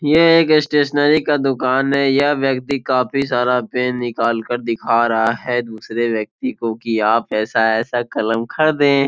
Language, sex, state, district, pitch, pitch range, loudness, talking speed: Hindi, male, Bihar, Gopalganj, 125 Hz, 115-140 Hz, -17 LUFS, 165 wpm